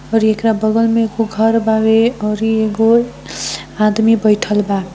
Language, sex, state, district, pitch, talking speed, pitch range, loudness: Hindi, female, Bihar, Gopalganj, 220 Hz, 160 wpm, 215-225 Hz, -14 LUFS